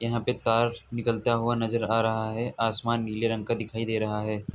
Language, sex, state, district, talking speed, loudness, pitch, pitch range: Hindi, male, Uttar Pradesh, Etah, 225 wpm, -27 LUFS, 115 Hz, 110-115 Hz